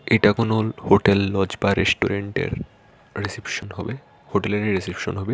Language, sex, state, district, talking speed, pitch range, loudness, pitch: Bengali, male, Tripura, Unakoti, 125 wpm, 100-115 Hz, -22 LUFS, 105 Hz